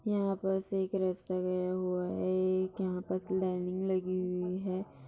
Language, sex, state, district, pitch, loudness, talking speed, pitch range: Hindi, female, Maharashtra, Nagpur, 185 Hz, -34 LUFS, 175 wpm, 185-190 Hz